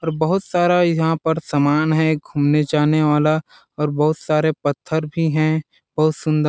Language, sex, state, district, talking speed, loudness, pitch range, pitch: Hindi, male, Chhattisgarh, Balrampur, 175 wpm, -18 LUFS, 150-160 Hz, 155 Hz